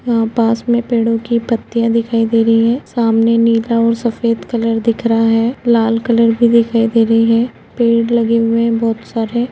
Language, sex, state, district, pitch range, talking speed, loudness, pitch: Hindi, female, Uttar Pradesh, Budaun, 230-235 Hz, 175 wpm, -14 LUFS, 230 Hz